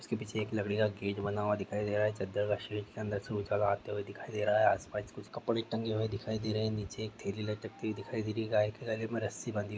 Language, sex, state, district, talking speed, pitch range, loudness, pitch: Hindi, male, Jharkhand, Sahebganj, 295 wpm, 105-110 Hz, -35 LUFS, 105 Hz